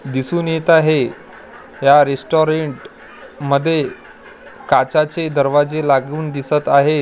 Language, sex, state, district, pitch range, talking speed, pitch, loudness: Marathi, male, Maharashtra, Gondia, 140-155 Hz, 95 wpm, 150 Hz, -16 LUFS